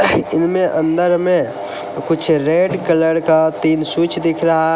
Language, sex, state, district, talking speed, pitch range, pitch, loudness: Hindi, male, Uttar Pradesh, Lalitpur, 125 wpm, 160-175 Hz, 165 Hz, -16 LUFS